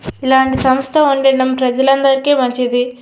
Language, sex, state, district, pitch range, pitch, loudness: Telugu, female, Andhra Pradesh, Srikakulam, 255-270 Hz, 265 Hz, -12 LUFS